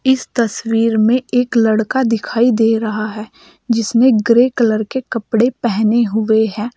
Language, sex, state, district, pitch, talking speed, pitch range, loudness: Hindi, female, Uttar Pradesh, Saharanpur, 230 Hz, 150 wpm, 220-245 Hz, -15 LUFS